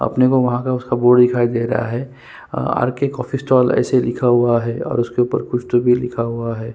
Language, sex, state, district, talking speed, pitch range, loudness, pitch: Hindi, male, Chhattisgarh, Sukma, 240 wpm, 120-125 Hz, -17 LUFS, 120 Hz